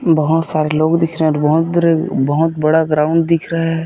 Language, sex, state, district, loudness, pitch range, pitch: Hindi, male, Chhattisgarh, Bilaspur, -15 LUFS, 155-165 Hz, 160 Hz